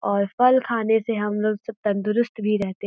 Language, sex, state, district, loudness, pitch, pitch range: Hindi, female, Uttar Pradesh, Gorakhpur, -22 LUFS, 210 Hz, 205-230 Hz